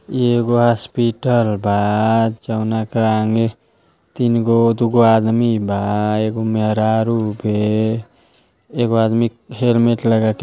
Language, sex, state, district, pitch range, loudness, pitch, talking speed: Bhojpuri, male, Uttar Pradesh, Ghazipur, 110-120 Hz, -17 LUFS, 115 Hz, 120 wpm